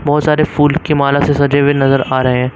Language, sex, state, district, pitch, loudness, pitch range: Hindi, male, Uttar Pradesh, Lucknow, 140 Hz, -12 LUFS, 135-145 Hz